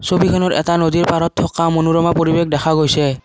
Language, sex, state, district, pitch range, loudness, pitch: Assamese, male, Assam, Kamrup Metropolitan, 160-170 Hz, -15 LUFS, 165 Hz